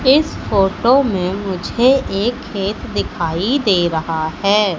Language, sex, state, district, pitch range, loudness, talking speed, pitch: Hindi, female, Madhya Pradesh, Katni, 180-245 Hz, -17 LUFS, 125 wpm, 200 Hz